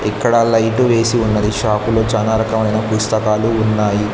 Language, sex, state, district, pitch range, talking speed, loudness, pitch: Telugu, male, Andhra Pradesh, Sri Satya Sai, 105-115 Hz, 145 wpm, -15 LUFS, 110 Hz